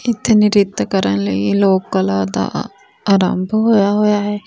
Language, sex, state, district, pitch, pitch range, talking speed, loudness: Punjabi, female, Punjab, Fazilka, 200 Hz, 185-210 Hz, 135 wpm, -15 LUFS